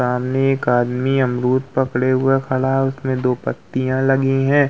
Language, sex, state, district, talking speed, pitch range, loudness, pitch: Hindi, male, Uttar Pradesh, Muzaffarnagar, 165 wpm, 125-135 Hz, -18 LUFS, 130 Hz